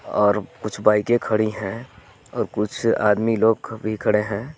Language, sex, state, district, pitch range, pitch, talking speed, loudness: Hindi, male, Jharkhand, Garhwa, 105-110 Hz, 105 Hz, 155 wpm, -21 LUFS